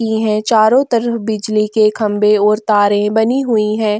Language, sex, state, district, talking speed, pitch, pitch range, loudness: Hindi, female, Goa, North and South Goa, 165 wpm, 215 Hz, 210-225 Hz, -14 LUFS